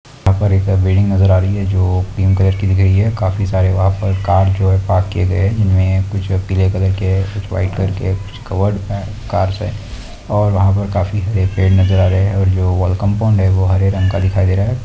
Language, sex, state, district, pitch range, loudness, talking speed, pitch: Hindi, male, Bihar, East Champaran, 95-100 Hz, -15 LUFS, 265 wpm, 95 Hz